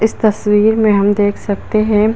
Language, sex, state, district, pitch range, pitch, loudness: Hindi, female, Uttar Pradesh, Budaun, 205-220 Hz, 210 Hz, -13 LUFS